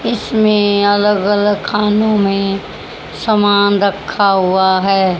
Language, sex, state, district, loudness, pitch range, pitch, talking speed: Hindi, male, Haryana, Rohtak, -13 LUFS, 195-210 Hz, 205 Hz, 105 wpm